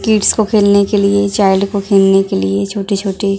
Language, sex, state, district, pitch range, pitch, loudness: Hindi, female, Bihar, Muzaffarpur, 195-200 Hz, 200 Hz, -13 LUFS